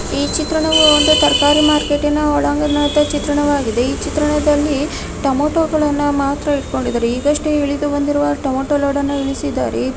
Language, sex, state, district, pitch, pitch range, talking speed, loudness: Kannada, female, Karnataka, Dharwad, 290 Hz, 285-300 Hz, 115 wpm, -15 LUFS